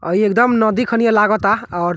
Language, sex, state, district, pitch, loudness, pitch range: Bhojpuri, male, Bihar, Muzaffarpur, 215 Hz, -15 LUFS, 200-230 Hz